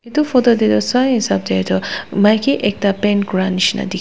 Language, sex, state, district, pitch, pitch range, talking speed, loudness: Nagamese, female, Nagaland, Dimapur, 205 Hz, 185-240 Hz, 210 wpm, -15 LUFS